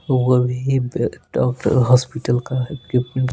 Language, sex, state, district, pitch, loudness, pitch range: Hindi, male, Bihar, Patna, 125 Hz, -19 LUFS, 125-130 Hz